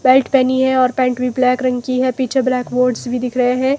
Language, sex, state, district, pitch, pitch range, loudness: Hindi, female, Himachal Pradesh, Shimla, 255 Hz, 250-260 Hz, -16 LUFS